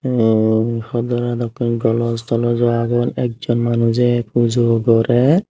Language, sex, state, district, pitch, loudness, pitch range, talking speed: Chakma, male, Tripura, Unakoti, 120 Hz, -17 LUFS, 115-120 Hz, 130 wpm